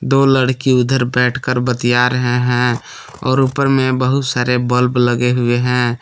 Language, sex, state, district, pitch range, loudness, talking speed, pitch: Hindi, male, Jharkhand, Palamu, 125-130 Hz, -15 LUFS, 160 wpm, 125 Hz